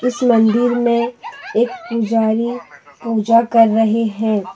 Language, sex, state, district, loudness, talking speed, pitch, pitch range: Hindi, female, Jharkhand, Deoghar, -16 LUFS, 120 wpm, 230 Hz, 220-240 Hz